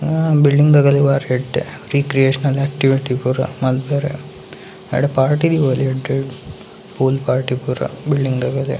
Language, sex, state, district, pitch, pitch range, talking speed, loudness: Tulu, male, Karnataka, Dakshina Kannada, 135 Hz, 130-145 Hz, 125 wpm, -17 LUFS